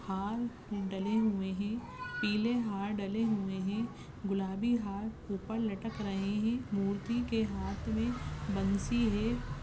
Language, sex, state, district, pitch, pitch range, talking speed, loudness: Hindi, female, Maharashtra, Sindhudurg, 210 Hz, 195-225 Hz, 130 wpm, -35 LUFS